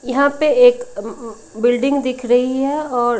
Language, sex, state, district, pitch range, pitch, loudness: Hindi, female, Odisha, Malkangiri, 240-285 Hz, 255 Hz, -16 LUFS